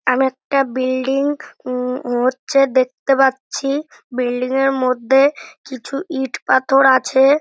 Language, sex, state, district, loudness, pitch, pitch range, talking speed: Bengali, male, West Bengal, North 24 Parganas, -17 LUFS, 265 Hz, 255-275 Hz, 115 wpm